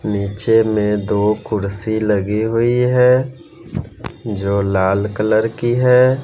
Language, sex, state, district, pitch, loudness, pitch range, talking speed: Hindi, male, Bihar, West Champaran, 110 Hz, -16 LUFS, 105-120 Hz, 115 wpm